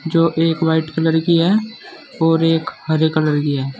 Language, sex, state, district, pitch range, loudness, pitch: Hindi, male, Uttar Pradesh, Saharanpur, 160-165 Hz, -17 LUFS, 160 Hz